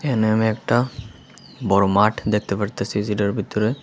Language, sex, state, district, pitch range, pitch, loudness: Bengali, male, Tripura, West Tripura, 100-110 Hz, 105 Hz, -21 LUFS